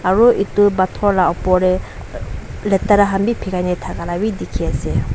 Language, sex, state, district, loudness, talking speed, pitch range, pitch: Nagamese, female, Nagaland, Dimapur, -17 LUFS, 185 wpm, 185-205 Hz, 195 Hz